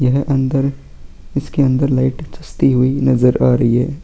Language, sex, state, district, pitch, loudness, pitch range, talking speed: Hindi, male, Chhattisgarh, Sukma, 130 Hz, -15 LUFS, 125-140 Hz, 165 wpm